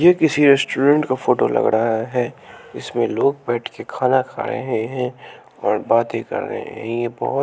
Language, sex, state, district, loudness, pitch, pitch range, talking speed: Hindi, male, Bihar, West Champaran, -19 LUFS, 130 Hz, 120-140 Hz, 185 wpm